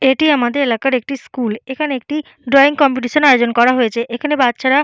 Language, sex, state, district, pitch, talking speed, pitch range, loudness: Bengali, female, West Bengal, Purulia, 265 Hz, 175 wpm, 240-285 Hz, -15 LUFS